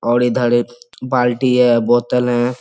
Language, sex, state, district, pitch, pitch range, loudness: Hindi, male, Bihar, Purnia, 120 Hz, 120-125 Hz, -15 LUFS